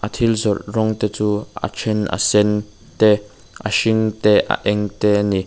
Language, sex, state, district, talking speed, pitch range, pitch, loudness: Mizo, male, Mizoram, Aizawl, 195 wpm, 105-110 Hz, 105 Hz, -18 LUFS